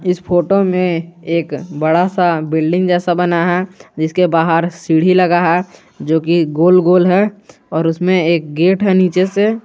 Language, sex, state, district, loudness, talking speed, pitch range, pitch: Hindi, male, Jharkhand, Garhwa, -14 LUFS, 160 wpm, 165-185 Hz, 175 Hz